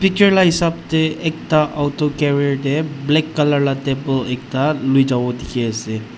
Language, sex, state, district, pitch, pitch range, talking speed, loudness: Nagamese, male, Nagaland, Dimapur, 145 Hz, 135-155 Hz, 165 wpm, -17 LUFS